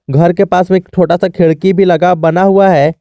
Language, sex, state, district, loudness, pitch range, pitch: Hindi, male, Jharkhand, Garhwa, -10 LUFS, 170-190 Hz, 180 Hz